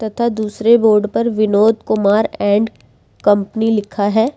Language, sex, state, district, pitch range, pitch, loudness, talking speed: Hindi, female, Delhi, New Delhi, 210-225 Hz, 215 Hz, -15 LUFS, 135 wpm